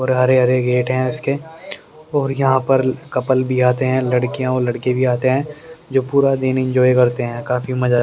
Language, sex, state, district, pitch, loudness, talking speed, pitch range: Hindi, male, Haryana, Rohtak, 130 Hz, -17 LUFS, 195 wpm, 125-135 Hz